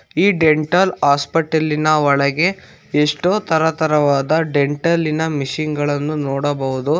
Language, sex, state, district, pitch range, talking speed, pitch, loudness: Kannada, male, Karnataka, Bangalore, 145-160 Hz, 105 wpm, 155 Hz, -17 LUFS